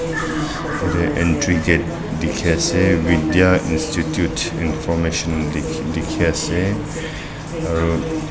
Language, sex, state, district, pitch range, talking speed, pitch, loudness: Nagamese, male, Nagaland, Dimapur, 80-90 Hz, 85 wpm, 85 Hz, -19 LUFS